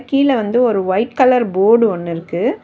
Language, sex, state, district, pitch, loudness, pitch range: Tamil, female, Tamil Nadu, Chennai, 230 Hz, -15 LUFS, 190-255 Hz